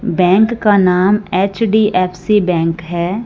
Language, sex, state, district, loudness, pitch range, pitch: Hindi, female, Punjab, Fazilka, -14 LUFS, 180-210 Hz, 190 Hz